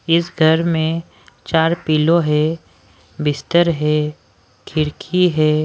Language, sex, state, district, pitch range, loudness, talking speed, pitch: Hindi, female, Maharashtra, Washim, 145-165 Hz, -17 LUFS, 105 wpm, 155 Hz